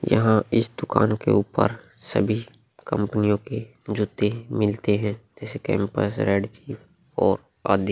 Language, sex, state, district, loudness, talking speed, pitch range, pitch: Hindi, male, Bihar, Vaishali, -24 LUFS, 130 wpm, 105-115 Hz, 105 Hz